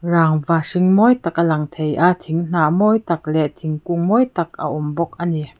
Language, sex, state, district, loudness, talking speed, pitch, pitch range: Mizo, female, Mizoram, Aizawl, -18 LUFS, 205 wpm, 170 Hz, 155-180 Hz